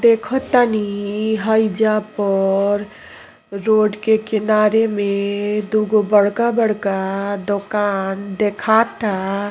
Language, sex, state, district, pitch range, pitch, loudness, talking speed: Bhojpuri, female, Uttar Pradesh, Ghazipur, 200-220 Hz, 210 Hz, -18 LUFS, 75 wpm